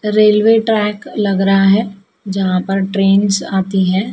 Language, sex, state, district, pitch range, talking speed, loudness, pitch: Hindi, female, Madhya Pradesh, Dhar, 195-210 Hz, 145 wpm, -14 LUFS, 195 Hz